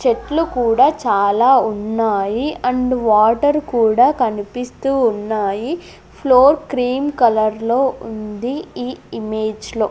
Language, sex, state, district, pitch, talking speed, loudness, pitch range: Telugu, female, Andhra Pradesh, Sri Satya Sai, 245 Hz, 105 wpm, -17 LUFS, 215-265 Hz